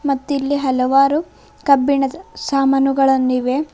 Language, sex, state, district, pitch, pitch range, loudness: Kannada, female, Karnataka, Bidar, 275 Hz, 265-280 Hz, -17 LUFS